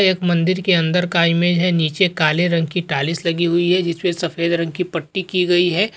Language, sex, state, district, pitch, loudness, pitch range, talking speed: Hindi, male, Maharashtra, Sindhudurg, 175 Hz, -18 LUFS, 170-180 Hz, 230 wpm